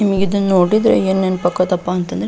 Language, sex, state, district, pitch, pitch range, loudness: Kannada, female, Karnataka, Belgaum, 190 Hz, 180-200 Hz, -15 LUFS